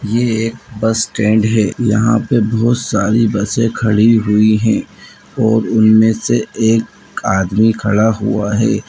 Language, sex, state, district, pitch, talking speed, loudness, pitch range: Hindi, male, Bihar, Muzaffarpur, 110 Hz, 140 wpm, -14 LUFS, 105-115 Hz